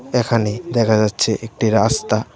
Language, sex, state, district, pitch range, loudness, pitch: Bengali, male, Tripura, West Tripura, 110-115 Hz, -18 LUFS, 115 Hz